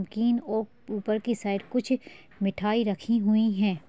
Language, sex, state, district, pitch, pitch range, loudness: Hindi, female, Chhattisgarh, Balrampur, 215 Hz, 205-230 Hz, -27 LUFS